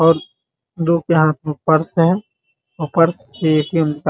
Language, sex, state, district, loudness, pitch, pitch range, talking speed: Hindi, male, Bihar, Muzaffarpur, -17 LUFS, 160 Hz, 155-170 Hz, 190 wpm